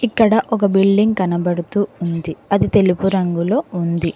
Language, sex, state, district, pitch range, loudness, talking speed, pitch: Telugu, female, Telangana, Mahabubabad, 175-210 Hz, -17 LUFS, 130 wpm, 195 Hz